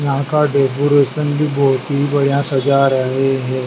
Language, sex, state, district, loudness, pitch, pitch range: Hindi, male, Madhya Pradesh, Dhar, -15 LUFS, 140 Hz, 135-145 Hz